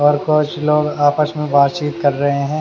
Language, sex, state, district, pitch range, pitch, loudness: Hindi, male, Haryana, Charkhi Dadri, 145-150 Hz, 150 Hz, -16 LUFS